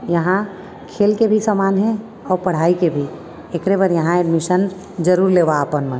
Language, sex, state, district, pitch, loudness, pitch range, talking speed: Chhattisgarhi, female, Chhattisgarh, Raigarh, 185 Hz, -17 LUFS, 170-200 Hz, 180 wpm